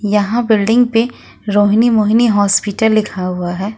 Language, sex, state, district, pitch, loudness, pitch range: Hindi, female, Jharkhand, Ranchi, 210 Hz, -13 LUFS, 205-225 Hz